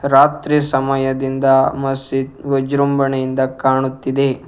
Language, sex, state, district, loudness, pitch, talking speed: Kannada, male, Karnataka, Bangalore, -17 LUFS, 135 Hz, 65 wpm